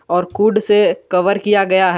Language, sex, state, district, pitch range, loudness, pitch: Hindi, male, Jharkhand, Garhwa, 180-210 Hz, -15 LUFS, 195 Hz